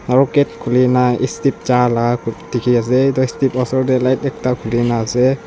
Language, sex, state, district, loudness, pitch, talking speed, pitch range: Nagamese, male, Nagaland, Dimapur, -16 LUFS, 125 Hz, 210 wpm, 120-130 Hz